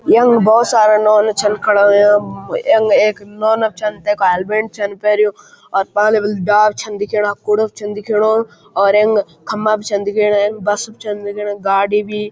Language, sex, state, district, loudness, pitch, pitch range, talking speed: Garhwali, male, Uttarakhand, Uttarkashi, -14 LUFS, 210 Hz, 205-215 Hz, 180 wpm